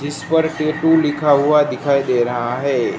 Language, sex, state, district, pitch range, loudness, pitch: Hindi, male, Gujarat, Gandhinagar, 135-155 Hz, -16 LUFS, 145 Hz